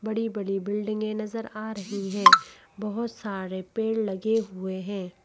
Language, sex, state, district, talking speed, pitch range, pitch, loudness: Hindi, female, Madhya Pradesh, Bhopal, 135 wpm, 195-220 Hz, 210 Hz, -26 LUFS